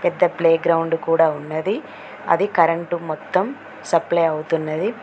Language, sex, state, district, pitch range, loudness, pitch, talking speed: Telugu, female, Telangana, Mahabubabad, 160-175 Hz, -20 LUFS, 165 Hz, 120 wpm